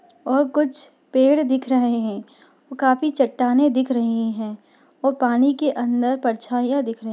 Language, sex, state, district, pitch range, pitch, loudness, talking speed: Hindi, female, Bihar, Darbhanga, 240-280 Hz, 260 Hz, -20 LUFS, 160 wpm